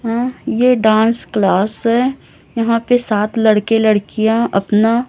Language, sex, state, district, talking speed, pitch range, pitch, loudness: Hindi, female, Chhattisgarh, Raipur, 130 wpm, 215-235 Hz, 225 Hz, -15 LUFS